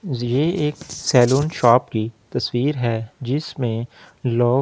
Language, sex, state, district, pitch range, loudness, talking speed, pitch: Hindi, male, Delhi, New Delhi, 120-145 Hz, -20 LUFS, 130 wpm, 125 Hz